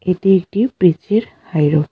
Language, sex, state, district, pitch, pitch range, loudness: Bengali, female, West Bengal, Alipurduar, 185 Hz, 170-205 Hz, -16 LUFS